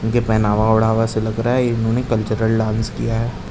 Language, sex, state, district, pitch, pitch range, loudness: Hindi, male, Uttar Pradesh, Jalaun, 110 Hz, 110-115 Hz, -18 LUFS